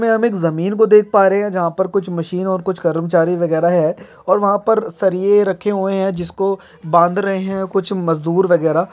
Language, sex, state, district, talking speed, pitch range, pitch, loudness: Hindi, male, Bihar, Gaya, 200 wpm, 175-200 Hz, 190 Hz, -16 LUFS